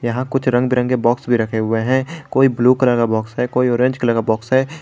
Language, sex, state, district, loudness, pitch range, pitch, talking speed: Hindi, male, Jharkhand, Garhwa, -17 LUFS, 120-130 Hz, 125 Hz, 260 wpm